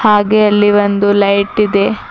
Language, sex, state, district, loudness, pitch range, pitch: Kannada, female, Karnataka, Bidar, -11 LUFS, 200-210 Hz, 205 Hz